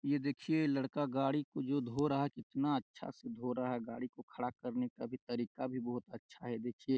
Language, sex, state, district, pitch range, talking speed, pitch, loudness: Hindi, male, Chhattisgarh, Raigarh, 125-145 Hz, 230 wpm, 135 Hz, -39 LUFS